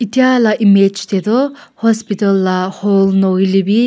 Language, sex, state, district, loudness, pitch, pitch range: Nagamese, female, Nagaland, Kohima, -13 LUFS, 205 Hz, 195-230 Hz